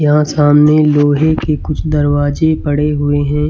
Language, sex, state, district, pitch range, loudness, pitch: Hindi, male, Chhattisgarh, Raipur, 145-150 Hz, -12 LUFS, 150 Hz